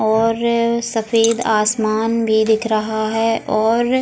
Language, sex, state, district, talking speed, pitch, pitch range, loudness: Hindi, female, Goa, North and South Goa, 150 wpm, 225 Hz, 220-230 Hz, -17 LUFS